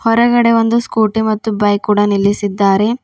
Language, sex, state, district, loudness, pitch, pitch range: Kannada, female, Karnataka, Bidar, -13 LUFS, 215 Hz, 205-230 Hz